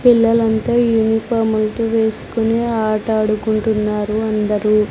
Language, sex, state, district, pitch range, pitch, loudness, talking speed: Telugu, female, Andhra Pradesh, Sri Satya Sai, 215-230 Hz, 220 Hz, -17 LUFS, 85 wpm